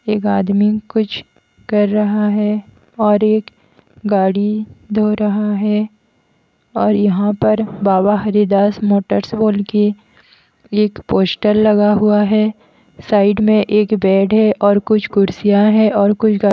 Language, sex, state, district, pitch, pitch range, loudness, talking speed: Hindi, female, Haryana, Jhajjar, 210 Hz, 205-215 Hz, -15 LUFS, 130 wpm